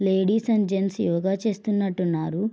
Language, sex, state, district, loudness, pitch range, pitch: Telugu, female, Andhra Pradesh, Srikakulam, -24 LUFS, 185-215 Hz, 195 Hz